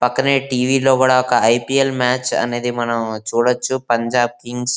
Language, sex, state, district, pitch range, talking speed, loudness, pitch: Telugu, male, Andhra Pradesh, Visakhapatnam, 120-130 Hz, 115 wpm, -17 LUFS, 125 Hz